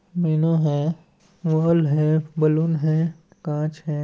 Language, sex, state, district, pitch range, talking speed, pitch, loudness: Chhattisgarhi, male, Chhattisgarh, Balrampur, 155-165 Hz, 105 wpm, 160 Hz, -22 LUFS